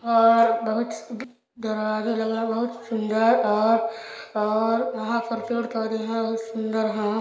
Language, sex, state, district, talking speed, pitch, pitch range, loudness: Hindi, male, Chhattisgarh, Balrampur, 135 wpm, 225 Hz, 220-230 Hz, -24 LUFS